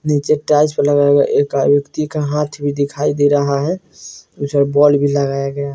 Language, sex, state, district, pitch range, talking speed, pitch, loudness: Bajjika, male, Bihar, Vaishali, 140-150 Hz, 250 wpm, 145 Hz, -15 LUFS